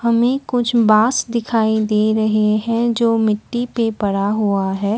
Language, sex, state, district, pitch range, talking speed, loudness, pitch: Hindi, female, Assam, Kamrup Metropolitan, 215-235 Hz, 155 wpm, -17 LUFS, 220 Hz